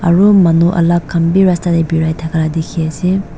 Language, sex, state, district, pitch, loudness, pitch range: Nagamese, female, Nagaland, Dimapur, 170 Hz, -13 LUFS, 160-180 Hz